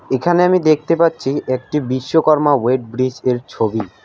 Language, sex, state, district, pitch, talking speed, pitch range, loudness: Bengali, male, West Bengal, Alipurduar, 135 Hz, 135 wpm, 125-155 Hz, -16 LUFS